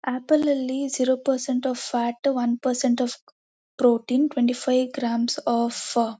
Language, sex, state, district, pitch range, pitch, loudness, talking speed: Kannada, female, Karnataka, Mysore, 240-265 Hz, 255 Hz, -23 LUFS, 145 wpm